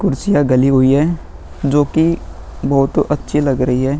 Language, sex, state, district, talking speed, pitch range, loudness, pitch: Hindi, male, Uttar Pradesh, Muzaffarnagar, 150 wpm, 135-155 Hz, -15 LUFS, 140 Hz